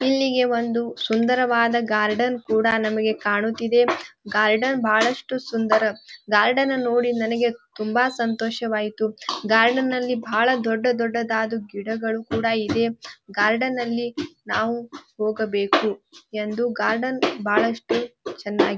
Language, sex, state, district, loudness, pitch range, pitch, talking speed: Kannada, female, Karnataka, Bijapur, -22 LUFS, 220-245 Hz, 230 Hz, 95 wpm